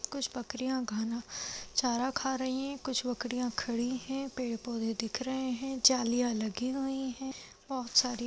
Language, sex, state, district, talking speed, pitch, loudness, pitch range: Hindi, female, Bihar, Madhepura, 160 wpm, 250 Hz, -33 LUFS, 240-265 Hz